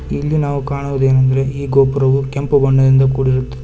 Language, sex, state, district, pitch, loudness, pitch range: Kannada, male, Karnataka, Bangalore, 135 Hz, -15 LUFS, 130-140 Hz